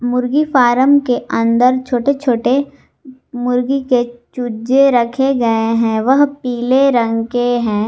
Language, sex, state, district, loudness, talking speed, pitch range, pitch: Hindi, female, Jharkhand, Garhwa, -14 LUFS, 130 wpm, 240-265 Hz, 245 Hz